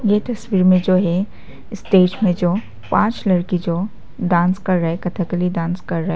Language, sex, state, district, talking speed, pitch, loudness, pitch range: Hindi, female, Arunachal Pradesh, Papum Pare, 175 wpm, 185 Hz, -18 LUFS, 175-200 Hz